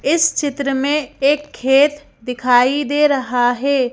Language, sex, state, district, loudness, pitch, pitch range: Hindi, female, Madhya Pradesh, Bhopal, -16 LUFS, 280 Hz, 255-290 Hz